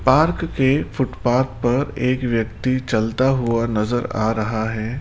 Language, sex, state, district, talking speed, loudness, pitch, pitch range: Hindi, male, Rajasthan, Jaipur, 145 wpm, -20 LUFS, 120 Hz, 110-130 Hz